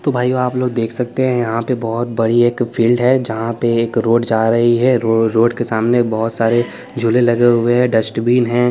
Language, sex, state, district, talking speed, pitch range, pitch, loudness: Hindi, male, Chandigarh, Chandigarh, 225 wpm, 115-120 Hz, 120 Hz, -15 LUFS